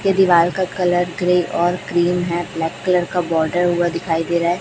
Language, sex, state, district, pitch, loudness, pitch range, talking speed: Hindi, female, Chhattisgarh, Raipur, 175 Hz, -18 LUFS, 170-180 Hz, 210 wpm